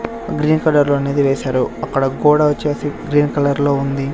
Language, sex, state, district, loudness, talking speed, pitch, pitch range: Telugu, male, Andhra Pradesh, Sri Satya Sai, -16 LUFS, 145 wpm, 145 Hz, 140-150 Hz